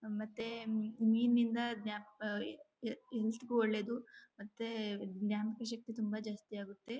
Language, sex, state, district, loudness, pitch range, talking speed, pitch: Kannada, female, Karnataka, Chamarajanagar, -38 LUFS, 210-230 Hz, 120 wpm, 220 Hz